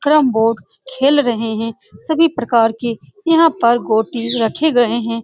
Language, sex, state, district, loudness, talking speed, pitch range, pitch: Hindi, female, Bihar, Saran, -15 LUFS, 185 wpm, 230-285 Hz, 235 Hz